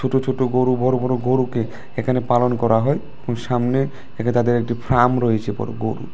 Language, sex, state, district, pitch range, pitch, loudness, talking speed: Bengali, male, Tripura, West Tripura, 120-130 Hz, 125 Hz, -20 LUFS, 175 wpm